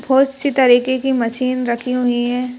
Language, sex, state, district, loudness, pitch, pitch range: Hindi, female, Madhya Pradesh, Bhopal, -16 LUFS, 250 Hz, 245-260 Hz